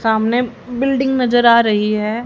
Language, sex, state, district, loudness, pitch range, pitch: Hindi, female, Haryana, Rohtak, -15 LUFS, 220-250 Hz, 235 Hz